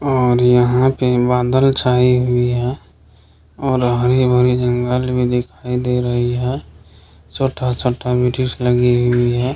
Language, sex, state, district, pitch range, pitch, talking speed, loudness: Hindi, male, Bihar, Kishanganj, 120-125 Hz, 125 Hz, 125 wpm, -16 LUFS